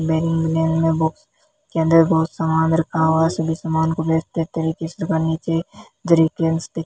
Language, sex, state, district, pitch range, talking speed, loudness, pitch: Hindi, female, Rajasthan, Bikaner, 160-165 Hz, 150 wpm, -19 LUFS, 160 Hz